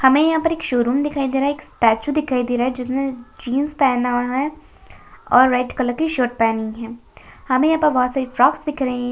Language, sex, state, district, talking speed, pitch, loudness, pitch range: Hindi, female, West Bengal, Dakshin Dinajpur, 230 wpm, 255 Hz, -19 LUFS, 245-285 Hz